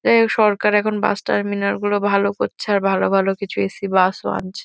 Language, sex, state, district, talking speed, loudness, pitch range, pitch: Bengali, female, West Bengal, Kolkata, 205 wpm, -19 LUFS, 195-210 Hz, 200 Hz